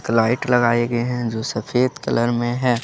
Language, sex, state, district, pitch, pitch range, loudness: Hindi, male, Jharkhand, Deoghar, 120 Hz, 115-125 Hz, -20 LUFS